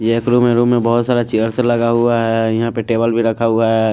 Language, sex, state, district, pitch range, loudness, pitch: Hindi, male, Delhi, New Delhi, 115-120 Hz, -15 LUFS, 115 Hz